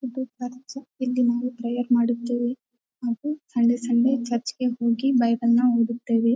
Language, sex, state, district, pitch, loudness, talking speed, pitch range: Kannada, female, Karnataka, Bellary, 245 Hz, -24 LUFS, 130 wpm, 235-255 Hz